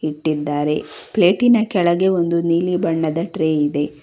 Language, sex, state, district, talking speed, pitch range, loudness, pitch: Kannada, female, Karnataka, Bangalore, 120 wpm, 150-180 Hz, -18 LUFS, 165 Hz